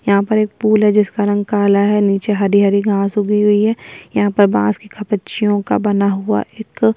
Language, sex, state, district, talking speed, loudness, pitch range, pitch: Hindi, female, Bihar, Kishanganj, 215 wpm, -15 LUFS, 200-210 Hz, 205 Hz